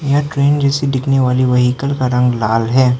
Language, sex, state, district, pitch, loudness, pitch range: Hindi, male, Arunachal Pradesh, Lower Dibang Valley, 130 Hz, -14 LUFS, 125-140 Hz